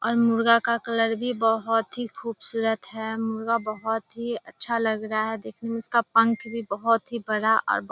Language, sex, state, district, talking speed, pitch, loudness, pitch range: Hindi, female, Bihar, Kishanganj, 195 wpm, 225 Hz, -25 LUFS, 220-230 Hz